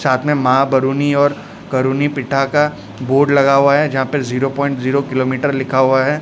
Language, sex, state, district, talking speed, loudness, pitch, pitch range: Hindi, male, Odisha, Khordha, 195 wpm, -15 LUFS, 135 Hz, 130-145 Hz